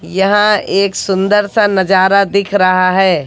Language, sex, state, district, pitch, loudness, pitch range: Hindi, female, Haryana, Jhajjar, 195 Hz, -12 LUFS, 190-205 Hz